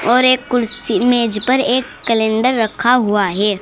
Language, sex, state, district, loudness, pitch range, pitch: Hindi, female, Uttar Pradesh, Saharanpur, -15 LUFS, 215-250 Hz, 235 Hz